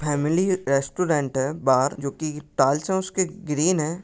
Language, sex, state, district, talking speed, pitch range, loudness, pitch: Hindi, male, Maharashtra, Pune, 135 wpm, 140-180 Hz, -23 LUFS, 150 Hz